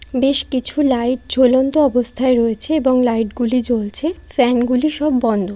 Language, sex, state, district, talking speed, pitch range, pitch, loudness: Bengali, female, West Bengal, Kolkata, 150 wpm, 240-275 Hz, 255 Hz, -16 LUFS